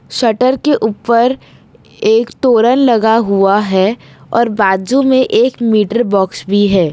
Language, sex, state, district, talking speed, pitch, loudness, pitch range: Hindi, female, Gujarat, Valsad, 140 wpm, 225 Hz, -12 LUFS, 205-245 Hz